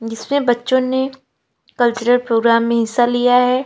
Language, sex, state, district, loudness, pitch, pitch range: Hindi, female, Uttar Pradesh, Lalitpur, -16 LUFS, 245 Hz, 235-255 Hz